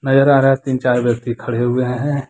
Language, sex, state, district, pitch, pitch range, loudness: Hindi, male, Jharkhand, Deoghar, 130 Hz, 120-135 Hz, -16 LUFS